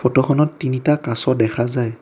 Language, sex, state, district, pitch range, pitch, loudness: Assamese, male, Assam, Kamrup Metropolitan, 120-145 Hz, 130 Hz, -18 LUFS